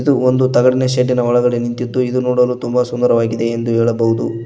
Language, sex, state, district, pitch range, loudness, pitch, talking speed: Kannada, male, Karnataka, Koppal, 115-125 Hz, -15 LUFS, 125 Hz, 175 wpm